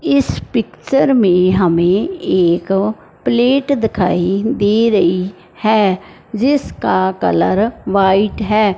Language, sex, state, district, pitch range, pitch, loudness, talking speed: Hindi, female, Punjab, Fazilka, 185-240 Hz, 205 Hz, -15 LUFS, 95 wpm